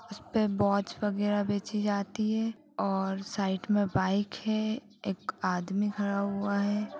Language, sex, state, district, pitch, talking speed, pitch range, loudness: Hindi, female, Bihar, Purnia, 205 Hz, 135 wpm, 200-215 Hz, -31 LUFS